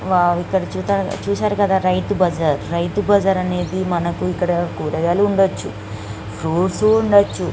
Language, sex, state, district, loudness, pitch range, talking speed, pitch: Telugu, female, Andhra Pradesh, Guntur, -18 LUFS, 170-195 Hz, 135 wpm, 180 Hz